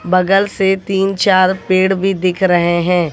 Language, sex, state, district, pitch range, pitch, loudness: Hindi, female, Haryana, Jhajjar, 180-195 Hz, 185 Hz, -14 LUFS